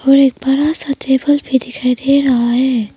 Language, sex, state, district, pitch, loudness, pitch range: Hindi, female, Arunachal Pradesh, Papum Pare, 265 Hz, -14 LUFS, 250-275 Hz